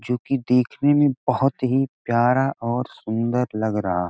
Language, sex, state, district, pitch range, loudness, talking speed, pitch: Hindi, male, Bihar, Gopalganj, 115-135 Hz, -21 LUFS, 175 wpm, 125 Hz